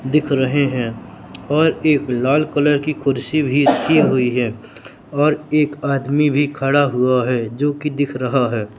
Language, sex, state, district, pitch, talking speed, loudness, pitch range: Hindi, male, Madhya Pradesh, Katni, 140 Hz, 170 wpm, -17 LUFS, 125-150 Hz